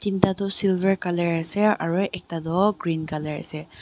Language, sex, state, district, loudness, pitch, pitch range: Nagamese, female, Nagaland, Dimapur, -24 LUFS, 180 Hz, 165-195 Hz